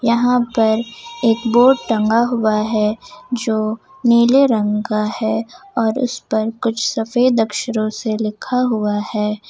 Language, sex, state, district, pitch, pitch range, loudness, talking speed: Hindi, female, Jharkhand, Ranchi, 225 Hz, 215-245 Hz, -17 LUFS, 140 wpm